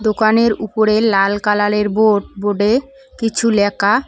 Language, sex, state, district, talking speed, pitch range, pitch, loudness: Bengali, female, West Bengal, Cooch Behar, 120 wpm, 205-225 Hz, 215 Hz, -15 LUFS